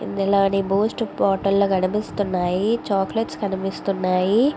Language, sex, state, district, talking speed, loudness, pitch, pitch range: Telugu, female, Andhra Pradesh, Visakhapatnam, 80 wpm, -21 LUFS, 195 Hz, 190-210 Hz